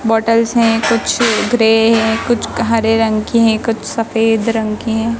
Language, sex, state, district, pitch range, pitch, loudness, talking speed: Hindi, male, Madhya Pradesh, Dhar, 225-230 Hz, 225 Hz, -14 LUFS, 175 wpm